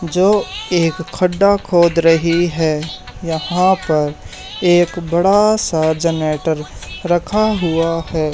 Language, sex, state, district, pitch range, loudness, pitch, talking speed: Hindi, male, Haryana, Charkhi Dadri, 160-180 Hz, -15 LUFS, 170 Hz, 110 wpm